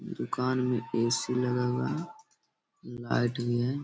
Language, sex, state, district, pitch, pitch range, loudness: Hindi, male, Bihar, Gaya, 125 Hz, 120-130 Hz, -30 LUFS